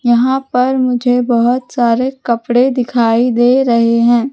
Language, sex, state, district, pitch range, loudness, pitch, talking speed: Hindi, female, Madhya Pradesh, Katni, 235-255 Hz, -13 LUFS, 245 Hz, 140 wpm